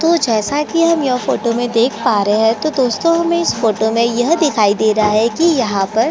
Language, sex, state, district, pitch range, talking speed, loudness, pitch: Hindi, female, Chhattisgarh, Korba, 220-310 Hz, 235 wpm, -15 LUFS, 240 Hz